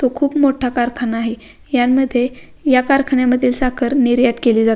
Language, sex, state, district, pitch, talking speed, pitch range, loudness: Marathi, female, Maharashtra, Pune, 250 Hz, 165 wpm, 240-265 Hz, -16 LUFS